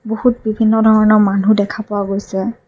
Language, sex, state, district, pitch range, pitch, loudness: Assamese, female, Assam, Kamrup Metropolitan, 205-220 Hz, 215 Hz, -14 LUFS